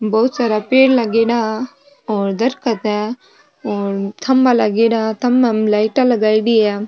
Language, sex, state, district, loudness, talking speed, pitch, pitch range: Marwari, female, Rajasthan, Nagaur, -16 LUFS, 140 wpm, 225 Hz, 215-250 Hz